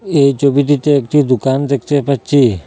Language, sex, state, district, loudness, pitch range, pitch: Bengali, male, Assam, Hailakandi, -13 LUFS, 135-145 Hz, 140 Hz